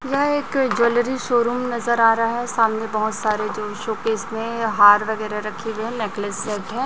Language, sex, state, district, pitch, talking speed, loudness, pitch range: Hindi, male, Chhattisgarh, Raipur, 225 Hz, 185 wpm, -20 LUFS, 215-240 Hz